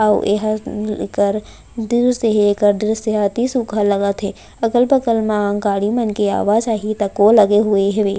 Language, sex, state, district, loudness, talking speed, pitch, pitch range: Chhattisgarhi, female, Chhattisgarh, Raigarh, -17 LUFS, 175 wpm, 210 Hz, 205-225 Hz